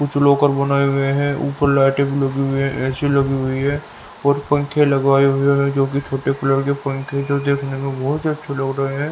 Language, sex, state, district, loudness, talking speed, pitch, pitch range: Hindi, male, Haryana, Rohtak, -18 LUFS, 230 wpm, 140 Hz, 135-140 Hz